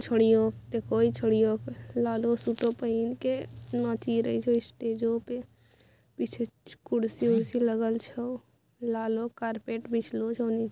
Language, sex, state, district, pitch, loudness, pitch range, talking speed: Maithili, female, Bihar, Bhagalpur, 230 Hz, -29 LUFS, 225-235 Hz, 125 wpm